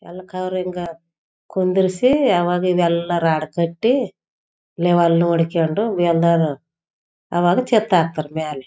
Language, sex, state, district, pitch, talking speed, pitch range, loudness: Kannada, female, Karnataka, Raichur, 175 Hz, 90 wpm, 165-185 Hz, -18 LUFS